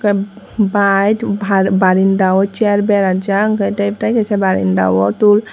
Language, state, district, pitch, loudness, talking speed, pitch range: Kokborok, Tripura, West Tripura, 200 Hz, -14 LUFS, 130 wpm, 190-210 Hz